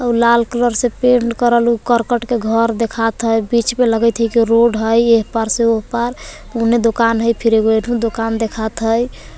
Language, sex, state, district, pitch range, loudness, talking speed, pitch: Magahi, female, Jharkhand, Palamu, 225-235 Hz, -15 LUFS, 210 wpm, 230 Hz